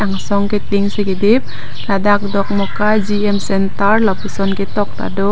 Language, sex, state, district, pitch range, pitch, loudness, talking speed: Karbi, female, Assam, Karbi Anglong, 195-205 Hz, 200 Hz, -16 LUFS, 145 wpm